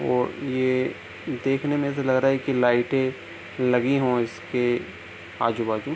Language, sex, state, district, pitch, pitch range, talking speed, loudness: Hindi, male, Bihar, East Champaran, 125 Hz, 120-135 Hz, 140 wpm, -24 LUFS